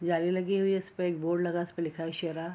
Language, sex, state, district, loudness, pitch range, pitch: Hindi, female, Bihar, Araria, -31 LUFS, 165-185 Hz, 175 Hz